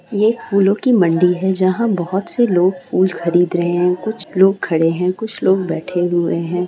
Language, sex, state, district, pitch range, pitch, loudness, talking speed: Hindi, female, Bihar, Saran, 175-200 Hz, 180 Hz, -16 LUFS, 205 wpm